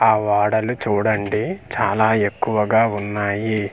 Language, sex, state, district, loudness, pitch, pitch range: Telugu, male, Andhra Pradesh, Manyam, -19 LUFS, 105 Hz, 105-110 Hz